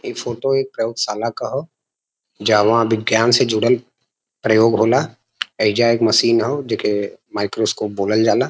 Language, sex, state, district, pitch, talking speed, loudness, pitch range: Bhojpuri, male, Uttar Pradesh, Varanasi, 115 Hz, 140 wpm, -18 LUFS, 110-120 Hz